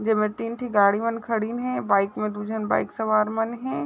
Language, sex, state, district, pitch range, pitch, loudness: Chhattisgarhi, female, Chhattisgarh, Raigarh, 210-230 Hz, 220 Hz, -24 LUFS